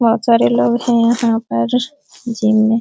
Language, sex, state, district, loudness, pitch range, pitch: Hindi, female, Uttar Pradesh, Deoria, -15 LUFS, 215-240 Hz, 230 Hz